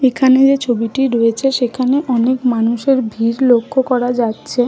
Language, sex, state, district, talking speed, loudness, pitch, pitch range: Bengali, female, West Bengal, Malda, 155 wpm, -15 LUFS, 250 Hz, 235-260 Hz